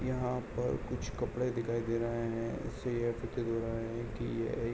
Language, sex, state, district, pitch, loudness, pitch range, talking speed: Hindi, male, Uttar Pradesh, Jalaun, 115 Hz, -36 LUFS, 115-120 Hz, 230 wpm